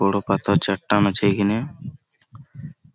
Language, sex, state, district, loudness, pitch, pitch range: Bengali, male, West Bengal, Malda, -20 LUFS, 110 Hz, 100-140 Hz